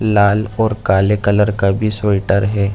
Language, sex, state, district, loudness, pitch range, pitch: Hindi, male, Chhattisgarh, Bilaspur, -15 LUFS, 100-105 Hz, 105 Hz